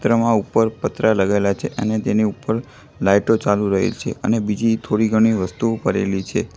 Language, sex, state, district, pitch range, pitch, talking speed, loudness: Gujarati, male, Gujarat, Gandhinagar, 100-115 Hz, 110 Hz, 175 wpm, -19 LUFS